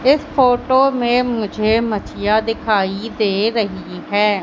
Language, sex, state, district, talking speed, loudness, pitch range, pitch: Hindi, female, Madhya Pradesh, Katni, 120 wpm, -17 LUFS, 210-245 Hz, 220 Hz